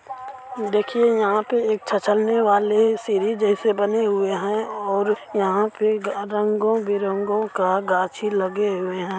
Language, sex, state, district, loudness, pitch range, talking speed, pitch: Hindi, male, Bihar, East Champaran, -21 LUFS, 200-220 Hz, 135 wpm, 210 Hz